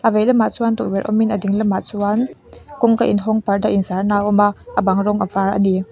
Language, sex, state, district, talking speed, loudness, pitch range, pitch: Mizo, female, Mizoram, Aizawl, 235 wpm, -17 LUFS, 195-220 Hz, 205 Hz